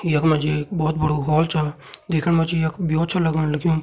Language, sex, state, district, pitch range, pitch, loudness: Hindi, male, Uttarakhand, Tehri Garhwal, 155-165 Hz, 155 Hz, -21 LUFS